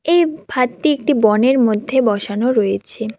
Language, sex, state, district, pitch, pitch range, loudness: Bengali, female, West Bengal, Cooch Behar, 250 Hz, 215-285 Hz, -16 LUFS